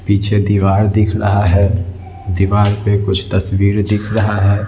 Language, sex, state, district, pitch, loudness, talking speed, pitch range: Hindi, male, Bihar, Patna, 100 Hz, -14 LUFS, 155 wpm, 95-105 Hz